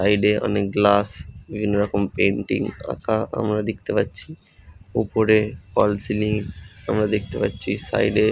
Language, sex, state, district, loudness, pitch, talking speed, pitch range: Bengali, male, West Bengal, Jhargram, -22 LUFS, 105 Hz, 135 wpm, 100-105 Hz